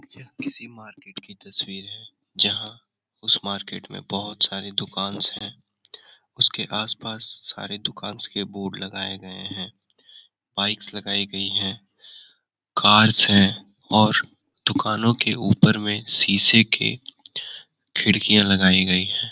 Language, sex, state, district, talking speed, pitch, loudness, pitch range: Hindi, male, Bihar, Jamui, 125 wpm, 105 Hz, -20 LUFS, 100-110 Hz